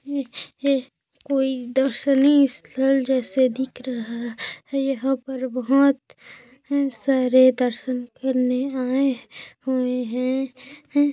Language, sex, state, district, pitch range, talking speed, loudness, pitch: Hindi, female, Chhattisgarh, Kabirdham, 255-275 Hz, 100 wpm, -22 LUFS, 265 Hz